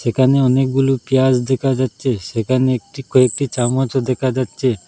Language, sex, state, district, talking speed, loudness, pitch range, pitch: Bengali, male, Assam, Hailakandi, 135 wpm, -17 LUFS, 125-135 Hz, 130 Hz